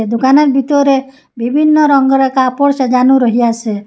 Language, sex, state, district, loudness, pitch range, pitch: Bengali, female, Assam, Hailakandi, -11 LUFS, 245-280 Hz, 265 Hz